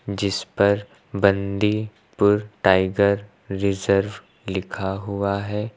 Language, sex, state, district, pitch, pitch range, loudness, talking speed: Hindi, male, Uttar Pradesh, Lucknow, 100 Hz, 100-105 Hz, -22 LUFS, 85 wpm